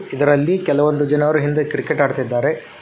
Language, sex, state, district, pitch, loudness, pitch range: Kannada, male, Karnataka, Koppal, 145 Hz, -17 LUFS, 145-150 Hz